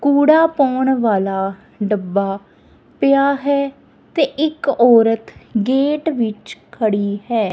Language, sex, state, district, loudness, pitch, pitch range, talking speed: Punjabi, female, Punjab, Kapurthala, -17 LUFS, 245 Hz, 210-280 Hz, 105 wpm